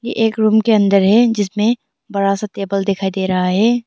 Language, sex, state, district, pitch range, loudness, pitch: Hindi, female, Arunachal Pradesh, Longding, 195-225 Hz, -16 LUFS, 210 Hz